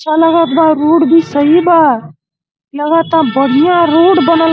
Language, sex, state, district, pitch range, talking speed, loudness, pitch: Bhojpuri, male, Uttar Pradesh, Gorakhpur, 285-330 Hz, 170 wpm, -10 LUFS, 320 Hz